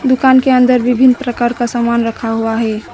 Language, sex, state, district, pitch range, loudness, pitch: Hindi, female, West Bengal, Alipurduar, 230-255 Hz, -13 LUFS, 240 Hz